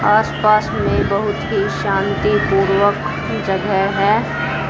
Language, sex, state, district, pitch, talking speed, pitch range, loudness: Hindi, female, Haryana, Charkhi Dadri, 195 Hz, 115 wpm, 195-210 Hz, -17 LUFS